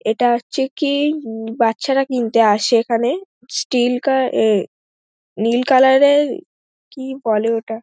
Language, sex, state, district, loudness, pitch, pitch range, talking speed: Bengali, female, West Bengal, Dakshin Dinajpur, -17 LUFS, 240 Hz, 225-265 Hz, 125 wpm